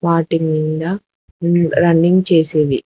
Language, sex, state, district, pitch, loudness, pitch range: Telugu, female, Telangana, Hyderabad, 165 Hz, -14 LUFS, 160-175 Hz